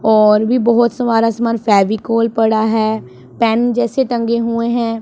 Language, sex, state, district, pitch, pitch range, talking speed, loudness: Hindi, female, Punjab, Pathankot, 230 Hz, 220-235 Hz, 155 wpm, -15 LUFS